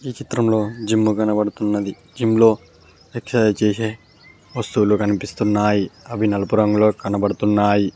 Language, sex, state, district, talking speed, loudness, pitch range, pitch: Telugu, male, Telangana, Mahabubabad, 105 wpm, -19 LUFS, 105-110 Hz, 105 Hz